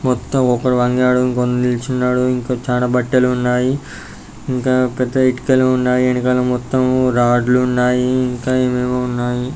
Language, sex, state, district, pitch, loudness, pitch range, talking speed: Telugu, male, Telangana, Karimnagar, 125 Hz, -16 LUFS, 125-130 Hz, 125 wpm